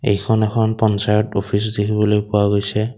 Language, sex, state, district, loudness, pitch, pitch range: Assamese, male, Assam, Kamrup Metropolitan, -18 LUFS, 105 Hz, 100-110 Hz